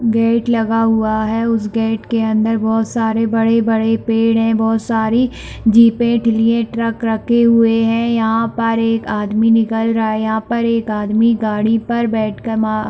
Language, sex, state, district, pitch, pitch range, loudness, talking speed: Hindi, female, Chhattisgarh, Bilaspur, 225 Hz, 220-230 Hz, -15 LUFS, 190 wpm